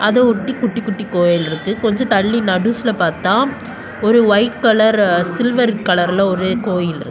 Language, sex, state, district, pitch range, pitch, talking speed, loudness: Tamil, female, Tamil Nadu, Kanyakumari, 185-235 Hz, 210 Hz, 150 wpm, -15 LUFS